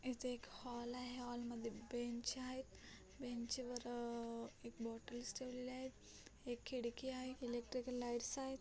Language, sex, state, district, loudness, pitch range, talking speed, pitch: Marathi, female, Maharashtra, Chandrapur, -48 LUFS, 235-255 Hz, 140 wpm, 245 Hz